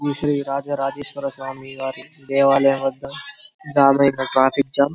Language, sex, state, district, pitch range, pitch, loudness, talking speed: Telugu, male, Telangana, Karimnagar, 135-145 Hz, 140 Hz, -20 LUFS, 120 wpm